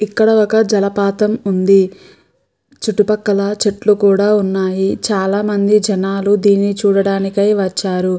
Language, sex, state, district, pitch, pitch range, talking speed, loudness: Telugu, female, Andhra Pradesh, Chittoor, 200 Hz, 195-210 Hz, 95 wpm, -14 LUFS